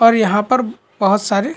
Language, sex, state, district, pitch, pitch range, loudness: Hindi, male, Chhattisgarh, Bilaspur, 215 Hz, 205-230 Hz, -16 LUFS